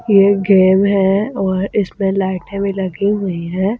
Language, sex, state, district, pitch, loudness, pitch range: Hindi, female, Delhi, New Delhi, 195 Hz, -15 LUFS, 190-200 Hz